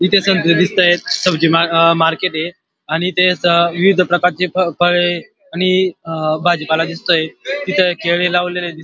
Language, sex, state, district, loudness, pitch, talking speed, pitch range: Marathi, male, Maharashtra, Dhule, -14 LUFS, 175 Hz, 120 wpm, 165-185 Hz